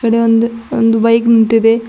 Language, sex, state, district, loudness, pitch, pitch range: Kannada, female, Karnataka, Bidar, -12 LUFS, 230 Hz, 225-230 Hz